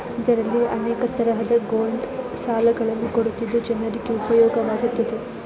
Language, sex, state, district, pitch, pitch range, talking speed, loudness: Kannada, female, Karnataka, Chamarajanagar, 230 Hz, 225-235 Hz, 75 wpm, -22 LUFS